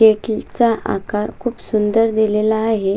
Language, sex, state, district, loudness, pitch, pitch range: Marathi, female, Maharashtra, Sindhudurg, -18 LUFS, 220 Hz, 210-225 Hz